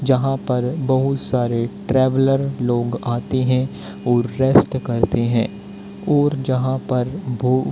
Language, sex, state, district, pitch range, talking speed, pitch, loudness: Hindi, male, Haryana, Jhajjar, 120-135 Hz, 125 wpm, 130 Hz, -19 LUFS